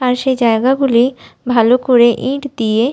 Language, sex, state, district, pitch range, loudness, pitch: Bengali, female, West Bengal, Jhargram, 235-260 Hz, -13 LUFS, 250 Hz